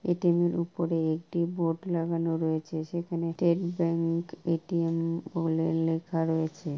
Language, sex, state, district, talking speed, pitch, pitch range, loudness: Bengali, female, West Bengal, Kolkata, 160 wpm, 165 Hz, 165-170 Hz, -29 LUFS